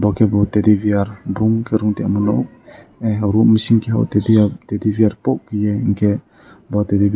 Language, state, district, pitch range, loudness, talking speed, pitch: Kokborok, Tripura, West Tripura, 105-110 Hz, -17 LUFS, 185 wpm, 105 Hz